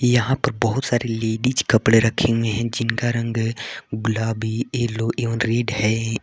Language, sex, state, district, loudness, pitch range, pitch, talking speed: Hindi, male, Jharkhand, Garhwa, -21 LUFS, 115-120 Hz, 115 Hz, 155 wpm